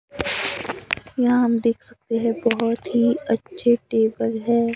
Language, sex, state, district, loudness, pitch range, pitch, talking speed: Hindi, female, Himachal Pradesh, Shimla, -22 LUFS, 230-240 Hz, 230 Hz, 125 wpm